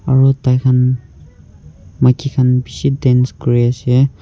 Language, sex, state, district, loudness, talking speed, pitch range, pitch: Nagamese, male, Nagaland, Kohima, -14 LUFS, 130 wpm, 120-130 Hz, 125 Hz